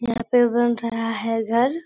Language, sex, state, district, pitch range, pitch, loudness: Hindi, female, Bihar, Supaul, 230-240 Hz, 235 Hz, -21 LUFS